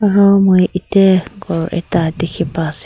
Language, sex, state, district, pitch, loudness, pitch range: Nagamese, female, Nagaland, Kohima, 180 Hz, -14 LUFS, 165-195 Hz